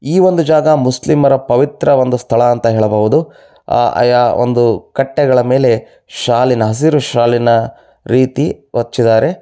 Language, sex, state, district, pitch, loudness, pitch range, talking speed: Kannada, male, Karnataka, Bellary, 125 Hz, -12 LUFS, 120-145 Hz, 115 wpm